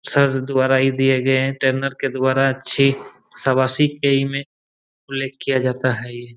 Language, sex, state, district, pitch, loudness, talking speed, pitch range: Hindi, male, Jharkhand, Jamtara, 135 Hz, -19 LUFS, 160 wpm, 130-135 Hz